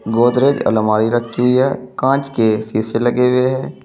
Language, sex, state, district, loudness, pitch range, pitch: Hindi, male, Uttar Pradesh, Saharanpur, -16 LUFS, 110-130 Hz, 120 Hz